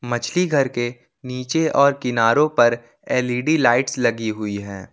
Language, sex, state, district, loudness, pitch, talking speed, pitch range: Hindi, male, Jharkhand, Ranchi, -19 LUFS, 125 Hz, 145 wpm, 120-140 Hz